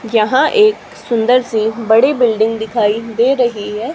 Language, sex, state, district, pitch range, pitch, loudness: Hindi, female, Haryana, Charkhi Dadri, 220-250 Hz, 230 Hz, -14 LUFS